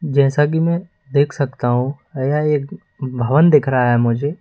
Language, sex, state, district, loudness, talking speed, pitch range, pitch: Hindi, male, Madhya Pradesh, Bhopal, -17 LUFS, 175 wpm, 130-150 Hz, 140 Hz